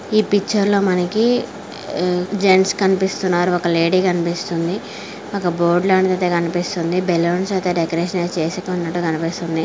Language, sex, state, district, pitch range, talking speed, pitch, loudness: Telugu, male, Andhra Pradesh, Chittoor, 170-190 Hz, 105 wpm, 180 Hz, -18 LUFS